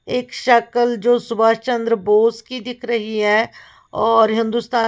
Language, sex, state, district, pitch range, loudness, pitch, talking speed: Hindi, female, Uttar Pradesh, Lalitpur, 225-240 Hz, -17 LUFS, 230 Hz, 160 wpm